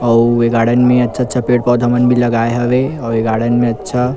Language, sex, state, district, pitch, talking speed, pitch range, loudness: Chhattisgarhi, male, Chhattisgarh, Kabirdham, 120 Hz, 215 wpm, 115-125 Hz, -13 LUFS